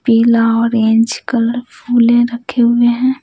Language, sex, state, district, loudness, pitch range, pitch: Hindi, female, Bihar, Patna, -13 LUFS, 230-245 Hz, 235 Hz